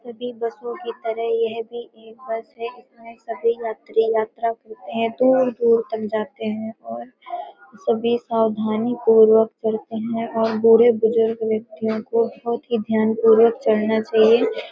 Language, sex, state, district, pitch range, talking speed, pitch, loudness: Hindi, female, Uttar Pradesh, Hamirpur, 220-235 Hz, 145 wpm, 225 Hz, -20 LUFS